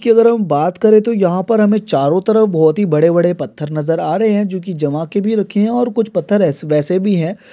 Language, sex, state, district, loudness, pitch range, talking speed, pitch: Hindi, male, Bihar, Sitamarhi, -14 LUFS, 165-220 Hz, 265 wpm, 190 Hz